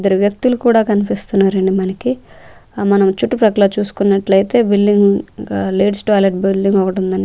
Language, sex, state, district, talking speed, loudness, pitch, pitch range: Telugu, female, Andhra Pradesh, Manyam, 130 wpm, -14 LUFS, 200 Hz, 195-205 Hz